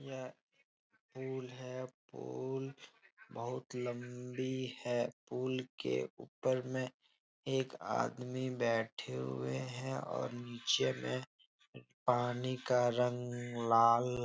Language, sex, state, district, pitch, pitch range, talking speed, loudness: Hindi, male, Bihar, Jahanabad, 125 Hz, 120-130 Hz, 110 wpm, -38 LUFS